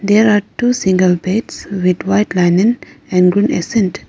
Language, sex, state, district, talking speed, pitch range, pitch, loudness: English, female, Arunachal Pradesh, Lower Dibang Valley, 160 wpm, 180-215 Hz, 195 Hz, -14 LUFS